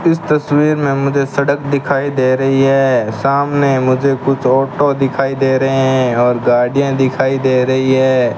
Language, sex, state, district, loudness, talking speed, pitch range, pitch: Hindi, male, Rajasthan, Bikaner, -13 LUFS, 165 wpm, 130-140 Hz, 135 Hz